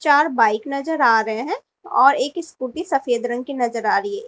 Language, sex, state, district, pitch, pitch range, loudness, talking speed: Hindi, female, Uttar Pradesh, Lalitpur, 265 Hz, 240-315 Hz, -20 LUFS, 240 wpm